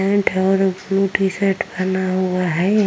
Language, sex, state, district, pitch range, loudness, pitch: Hindi, female, Uttar Pradesh, Jyotiba Phule Nagar, 185-195 Hz, -19 LUFS, 190 Hz